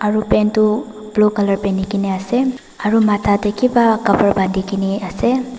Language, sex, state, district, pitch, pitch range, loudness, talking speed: Nagamese, female, Nagaland, Dimapur, 210 Hz, 200-225 Hz, -16 LUFS, 160 wpm